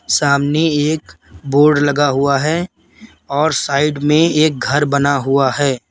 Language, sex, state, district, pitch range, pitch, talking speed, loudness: Hindi, male, Uttar Pradesh, Lalitpur, 140-155 Hz, 145 Hz, 140 wpm, -15 LUFS